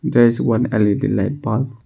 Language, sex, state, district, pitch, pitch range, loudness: English, male, Arunachal Pradesh, Longding, 120 Hz, 110-130 Hz, -18 LUFS